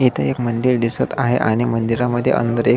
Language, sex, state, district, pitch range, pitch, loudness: Marathi, male, Maharashtra, Solapur, 115-125 Hz, 120 Hz, -18 LUFS